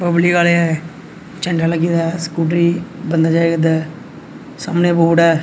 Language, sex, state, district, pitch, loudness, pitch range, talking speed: Hindi, male, Punjab, Pathankot, 170 Hz, -16 LUFS, 165-170 Hz, 110 wpm